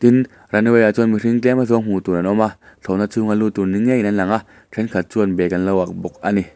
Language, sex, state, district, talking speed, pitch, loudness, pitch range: Mizo, male, Mizoram, Aizawl, 285 wpm, 105 Hz, -18 LUFS, 95-115 Hz